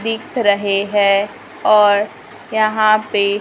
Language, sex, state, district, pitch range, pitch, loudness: Hindi, female, Maharashtra, Gondia, 205-215 Hz, 210 Hz, -15 LUFS